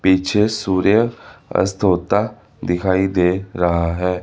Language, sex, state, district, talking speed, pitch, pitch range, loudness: Hindi, male, Chandigarh, Chandigarh, 115 wpm, 95 Hz, 90-105 Hz, -18 LUFS